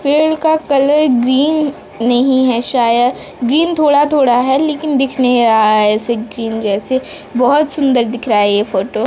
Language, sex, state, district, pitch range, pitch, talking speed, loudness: Hindi, female, Odisha, Sambalpur, 230-290 Hz, 255 Hz, 170 wpm, -13 LUFS